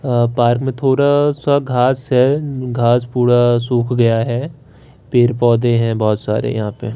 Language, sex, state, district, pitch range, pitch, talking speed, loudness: Hindi, male, Delhi, New Delhi, 120-130 Hz, 120 Hz, 165 wpm, -15 LUFS